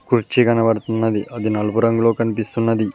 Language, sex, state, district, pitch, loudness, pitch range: Telugu, male, Telangana, Mahabubabad, 115 Hz, -18 LUFS, 110-115 Hz